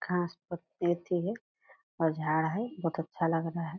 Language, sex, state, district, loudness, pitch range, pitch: Hindi, female, Bihar, Purnia, -32 LUFS, 165-180 Hz, 170 Hz